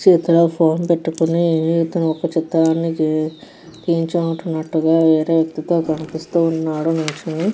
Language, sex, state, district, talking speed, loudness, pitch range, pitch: Telugu, female, Andhra Pradesh, Krishna, 105 wpm, -18 LUFS, 160-170 Hz, 165 Hz